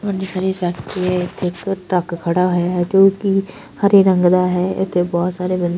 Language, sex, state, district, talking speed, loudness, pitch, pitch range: Punjabi, female, Punjab, Fazilka, 185 wpm, -17 LUFS, 180 Hz, 175-190 Hz